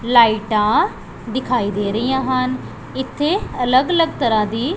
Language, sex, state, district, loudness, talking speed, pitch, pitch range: Punjabi, female, Punjab, Pathankot, -18 LUFS, 125 wpm, 250 Hz, 220-265 Hz